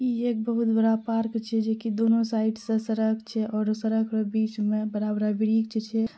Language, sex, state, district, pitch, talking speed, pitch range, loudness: Maithili, female, Bihar, Purnia, 220 Hz, 215 wpm, 220-225 Hz, -26 LUFS